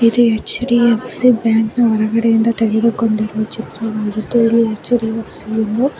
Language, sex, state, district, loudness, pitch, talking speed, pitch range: Kannada, female, Karnataka, Bangalore, -15 LUFS, 225 Hz, 100 wpm, 220-235 Hz